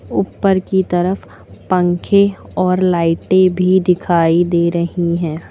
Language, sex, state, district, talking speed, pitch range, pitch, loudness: Hindi, female, Uttar Pradesh, Lucknow, 120 wpm, 170-185 Hz, 180 Hz, -15 LUFS